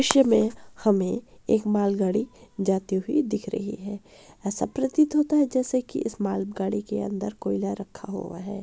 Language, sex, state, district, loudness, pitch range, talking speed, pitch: Hindi, female, Bihar, Kishanganj, -26 LUFS, 200-250 Hz, 180 wpm, 210 Hz